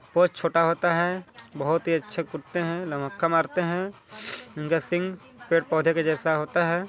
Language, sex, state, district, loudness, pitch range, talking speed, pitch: Hindi, male, Chhattisgarh, Balrampur, -26 LUFS, 165-175 Hz, 185 wpm, 170 Hz